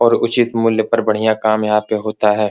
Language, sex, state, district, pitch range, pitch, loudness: Hindi, male, Bihar, Supaul, 105-115 Hz, 110 Hz, -16 LUFS